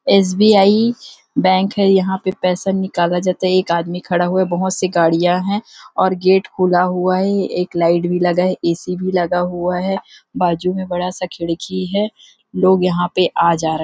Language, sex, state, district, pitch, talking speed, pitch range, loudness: Hindi, female, Chhattisgarh, Rajnandgaon, 185 Hz, 195 wpm, 175-190 Hz, -16 LUFS